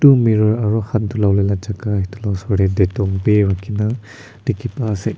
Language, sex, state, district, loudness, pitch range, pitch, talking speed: Nagamese, male, Nagaland, Kohima, -18 LUFS, 100-110 Hz, 105 Hz, 195 wpm